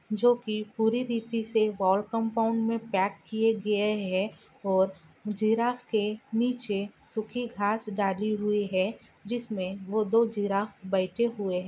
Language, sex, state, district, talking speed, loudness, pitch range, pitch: Hindi, female, Maharashtra, Nagpur, 140 wpm, -29 LUFS, 200-225 Hz, 215 Hz